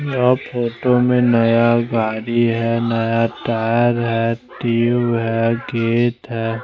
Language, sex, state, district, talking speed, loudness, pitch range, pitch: Hindi, male, Chandigarh, Chandigarh, 115 wpm, -18 LUFS, 115-120 Hz, 115 Hz